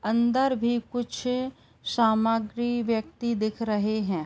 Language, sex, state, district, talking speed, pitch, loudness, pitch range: Hindi, female, Uttar Pradesh, Gorakhpur, 115 wpm, 230 Hz, -26 LUFS, 220-240 Hz